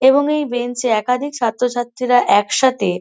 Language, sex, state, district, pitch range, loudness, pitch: Bengali, female, West Bengal, North 24 Parganas, 235-260 Hz, -17 LUFS, 245 Hz